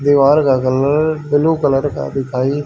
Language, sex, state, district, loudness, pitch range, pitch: Hindi, male, Haryana, Rohtak, -15 LUFS, 135-145 Hz, 145 Hz